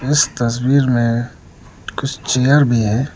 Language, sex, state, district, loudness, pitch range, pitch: Hindi, male, Arunachal Pradesh, Lower Dibang Valley, -16 LUFS, 120-140 Hz, 130 Hz